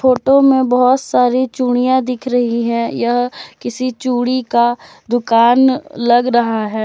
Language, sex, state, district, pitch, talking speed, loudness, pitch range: Hindi, female, Jharkhand, Deoghar, 245 Hz, 140 wpm, -14 LUFS, 240-255 Hz